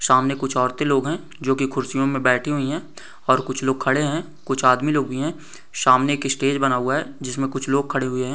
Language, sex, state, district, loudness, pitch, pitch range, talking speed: Hindi, male, Andhra Pradesh, Guntur, -21 LUFS, 135 Hz, 130-140 Hz, 235 wpm